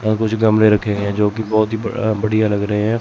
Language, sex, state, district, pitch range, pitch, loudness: Hindi, male, Chandigarh, Chandigarh, 105-110 Hz, 110 Hz, -17 LUFS